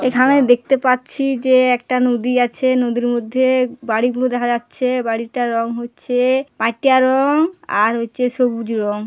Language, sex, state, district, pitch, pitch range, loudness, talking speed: Bengali, female, West Bengal, Paschim Medinipur, 250 Hz, 235-260 Hz, -17 LUFS, 140 wpm